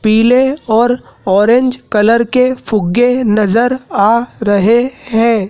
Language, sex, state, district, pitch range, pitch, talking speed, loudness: Hindi, male, Madhya Pradesh, Dhar, 215-250 Hz, 235 Hz, 110 wpm, -12 LUFS